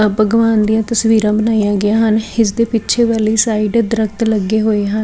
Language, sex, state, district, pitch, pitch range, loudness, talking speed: Punjabi, female, Chandigarh, Chandigarh, 220 Hz, 215-225 Hz, -14 LUFS, 190 wpm